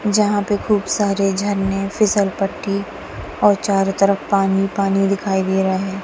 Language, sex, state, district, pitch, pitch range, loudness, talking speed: Hindi, female, Punjab, Kapurthala, 195 Hz, 195-205 Hz, -18 LUFS, 160 wpm